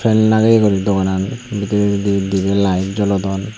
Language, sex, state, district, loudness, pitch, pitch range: Chakma, male, Tripura, Unakoti, -16 LUFS, 100 Hz, 95-110 Hz